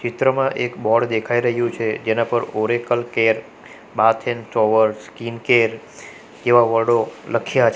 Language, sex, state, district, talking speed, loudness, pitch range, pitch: Gujarati, male, Gujarat, Valsad, 145 wpm, -19 LUFS, 110-120 Hz, 115 Hz